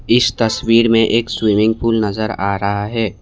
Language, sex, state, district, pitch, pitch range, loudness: Hindi, male, Assam, Kamrup Metropolitan, 110 Hz, 105-115 Hz, -15 LUFS